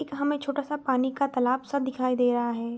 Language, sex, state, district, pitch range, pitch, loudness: Hindi, female, Bihar, Begusarai, 250-280 Hz, 260 Hz, -27 LUFS